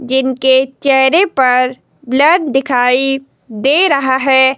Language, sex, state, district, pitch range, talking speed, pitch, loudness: Hindi, female, Himachal Pradesh, Shimla, 260-275 Hz, 105 wpm, 265 Hz, -12 LUFS